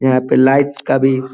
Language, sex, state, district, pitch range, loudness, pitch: Hindi, male, Uttar Pradesh, Ghazipur, 130-135 Hz, -14 LUFS, 130 Hz